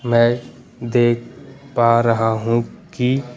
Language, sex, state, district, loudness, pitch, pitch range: Hindi, male, Madhya Pradesh, Bhopal, -18 LUFS, 120 Hz, 115-125 Hz